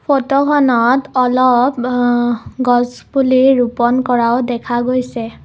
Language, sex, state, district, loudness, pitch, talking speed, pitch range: Assamese, female, Assam, Kamrup Metropolitan, -14 LUFS, 250 Hz, 100 wpm, 240-260 Hz